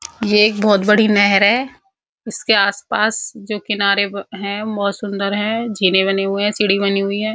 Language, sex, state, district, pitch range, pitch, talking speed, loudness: Hindi, female, Uttar Pradesh, Muzaffarnagar, 200-215 Hz, 205 Hz, 195 wpm, -16 LUFS